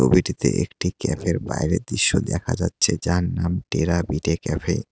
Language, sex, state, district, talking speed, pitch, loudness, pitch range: Bengali, male, West Bengal, Cooch Behar, 145 wpm, 85 Hz, -22 LUFS, 80-90 Hz